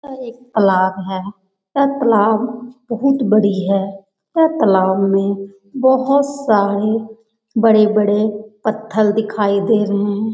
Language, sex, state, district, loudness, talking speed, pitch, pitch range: Hindi, female, Bihar, Jamui, -16 LUFS, 115 wpm, 215 Hz, 200-235 Hz